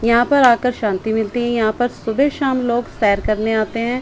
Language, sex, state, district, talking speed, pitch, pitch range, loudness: Hindi, female, Chandigarh, Chandigarh, 225 wpm, 235 Hz, 220-250 Hz, -17 LUFS